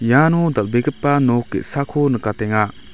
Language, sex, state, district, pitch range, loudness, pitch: Garo, male, Meghalaya, West Garo Hills, 110-145 Hz, -18 LUFS, 125 Hz